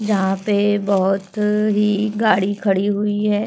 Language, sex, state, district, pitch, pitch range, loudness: Hindi, female, Uttar Pradesh, Hamirpur, 205 Hz, 195-210 Hz, -18 LUFS